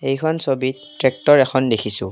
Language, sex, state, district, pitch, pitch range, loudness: Assamese, male, Assam, Kamrup Metropolitan, 130 Hz, 125-140 Hz, -18 LUFS